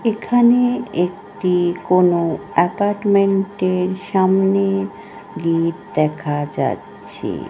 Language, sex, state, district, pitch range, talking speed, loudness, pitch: Bengali, female, West Bengal, North 24 Parganas, 165-195 Hz, 65 wpm, -18 LUFS, 180 Hz